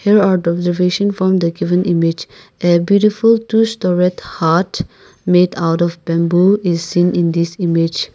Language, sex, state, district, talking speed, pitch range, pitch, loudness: English, male, Nagaland, Kohima, 155 wpm, 170-190 Hz, 180 Hz, -15 LUFS